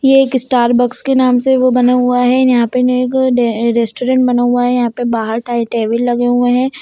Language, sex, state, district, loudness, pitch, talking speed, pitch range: Hindi, female, Bihar, Jamui, -13 LUFS, 245 Hz, 230 wpm, 240-255 Hz